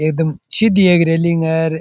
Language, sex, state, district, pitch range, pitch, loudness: Rajasthani, male, Rajasthan, Churu, 160-175 Hz, 165 Hz, -14 LUFS